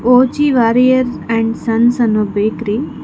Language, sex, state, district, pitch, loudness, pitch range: Kannada, female, Karnataka, Bangalore, 235 Hz, -14 LUFS, 225-250 Hz